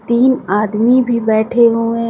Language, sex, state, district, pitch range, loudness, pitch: Hindi, female, Uttar Pradesh, Lucknow, 220-240 Hz, -13 LUFS, 230 Hz